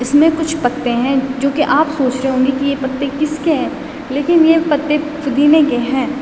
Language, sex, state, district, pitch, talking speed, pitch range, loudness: Hindi, female, Uttarakhand, Tehri Garhwal, 285 Hz, 185 wpm, 265-305 Hz, -15 LUFS